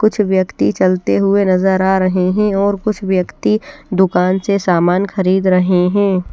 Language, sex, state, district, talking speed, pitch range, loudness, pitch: Hindi, female, Odisha, Nuapada, 160 wpm, 185-200 Hz, -14 LUFS, 190 Hz